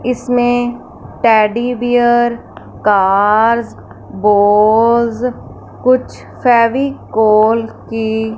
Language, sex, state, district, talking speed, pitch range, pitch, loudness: Hindi, male, Punjab, Fazilka, 55 wpm, 220-245 Hz, 230 Hz, -13 LUFS